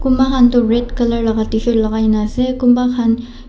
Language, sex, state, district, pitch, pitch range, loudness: Nagamese, male, Nagaland, Dimapur, 240 Hz, 225-250 Hz, -15 LUFS